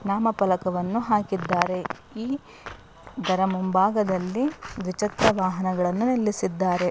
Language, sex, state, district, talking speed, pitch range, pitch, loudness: Kannada, female, Karnataka, Bellary, 70 wpm, 185-220 Hz, 190 Hz, -25 LUFS